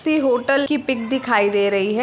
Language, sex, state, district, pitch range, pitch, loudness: Hindi, female, Bihar, Purnia, 205-275 Hz, 255 Hz, -19 LUFS